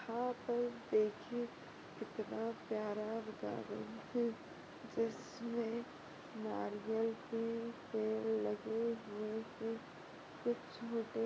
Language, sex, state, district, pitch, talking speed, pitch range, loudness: Hindi, female, Maharashtra, Dhule, 225 Hz, 85 wpm, 215-235 Hz, -41 LUFS